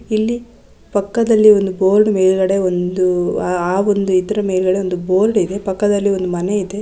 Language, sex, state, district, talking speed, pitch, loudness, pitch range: Kannada, female, Karnataka, Gulbarga, 150 wpm, 195 Hz, -16 LUFS, 185-205 Hz